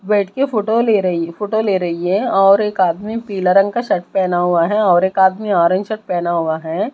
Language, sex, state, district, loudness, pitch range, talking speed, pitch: Hindi, female, Odisha, Malkangiri, -16 LUFS, 175-215 Hz, 240 wpm, 195 Hz